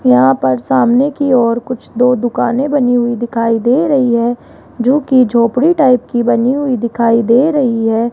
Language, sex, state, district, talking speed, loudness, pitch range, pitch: Hindi, female, Rajasthan, Jaipur, 185 wpm, -12 LUFS, 230-260 Hz, 240 Hz